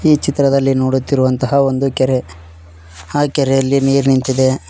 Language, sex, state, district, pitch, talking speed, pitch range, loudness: Kannada, male, Karnataka, Koppal, 130 Hz, 115 wpm, 130-140 Hz, -15 LUFS